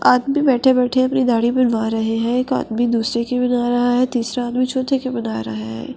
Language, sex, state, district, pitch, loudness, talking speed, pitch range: Hindi, female, Delhi, New Delhi, 245 Hz, -18 LUFS, 210 wpm, 230-255 Hz